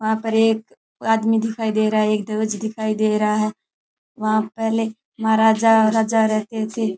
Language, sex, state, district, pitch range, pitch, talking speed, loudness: Rajasthani, male, Rajasthan, Churu, 215-225 Hz, 220 Hz, 180 wpm, -20 LUFS